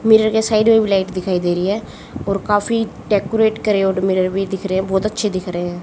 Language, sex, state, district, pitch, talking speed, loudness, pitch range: Hindi, female, Haryana, Jhajjar, 195 Hz, 245 wpm, -17 LUFS, 190-220 Hz